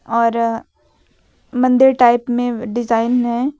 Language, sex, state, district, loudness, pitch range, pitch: Hindi, female, Uttar Pradesh, Lucknow, -16 LUFS, 235-250 Hz, 240 Hz